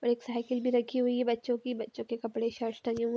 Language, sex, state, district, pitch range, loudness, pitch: Hindi, female, Bihar, Gaya, 230-245 Hz, -32 LUFS, 235 Hz